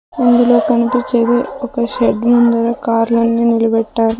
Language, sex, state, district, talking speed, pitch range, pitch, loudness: Telugu, female, Andhra Pradesh, Sri Satya Sai, 100 wpm, 230-240 Hz, 235 Hz, -14 LUFS